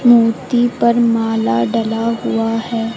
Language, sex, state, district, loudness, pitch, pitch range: Hindi, female, Uttar Pradesh, Lucknow, -15 LUFS, 230 Hz, 225-235 Hz